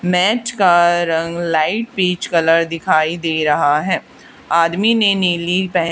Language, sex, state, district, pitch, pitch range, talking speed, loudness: Hindi, female, Haryana, Charkhi Dadri, 170 Hz, 165-185 Hz, 140 wpm, -16 LUFS